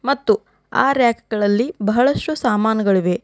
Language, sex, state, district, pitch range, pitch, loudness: Kannada, female, Karnataka, Bidar, 210-270 Hz, 235 Hz, -18 LUFS